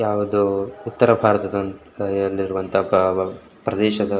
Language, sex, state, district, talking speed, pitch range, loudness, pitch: Kannada, male, Karnataka, Shimoga, 100 wpm, 95-105 Hz, -21 LUFS, 100 Hz